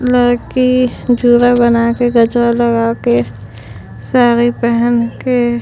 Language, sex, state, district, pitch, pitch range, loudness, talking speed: Hindi, female, Chhattisgarh, Sukma, 240 Hz, 235-245 Hz, -12 LUFS, 120 wpm